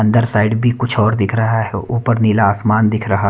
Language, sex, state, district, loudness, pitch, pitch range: Hindi, male, Punjab, Kapurthala, -15 LUFS, 110 Hz, 105-115 Hz